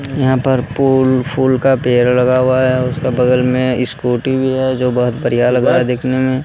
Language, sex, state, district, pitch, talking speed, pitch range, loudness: Hindi, male, Bihar, Katihar, 130 Hz, 215 wpm, 125-130 Hz, -14 LUFS